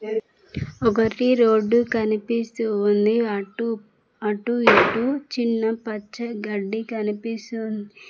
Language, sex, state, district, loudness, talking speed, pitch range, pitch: Telugu, female, Telangana, Mahabubabad, -22 LUFS, 90 wpm, 215-230 Hz, 225 Hz